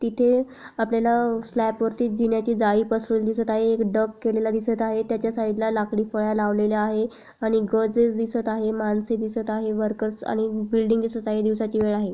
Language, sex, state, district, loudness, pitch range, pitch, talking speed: Marathi, female, Maharashtra, Sindhudurg, -24 LUFS, 215-230 Hz, 220 Hz, 190 wpm